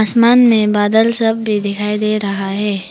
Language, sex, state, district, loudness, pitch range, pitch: Hindi, female, Arunachal Pradesh, Papum Pare, -14 LUFS, 205-225 Hz, 210 Hz